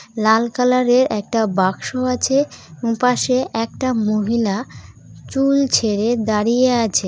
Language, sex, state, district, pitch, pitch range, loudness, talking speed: Bengali, female, West Bengal, Jalpaiguri, 235 Hz, 220-255 Hz, -18 LUFS, 110 wpm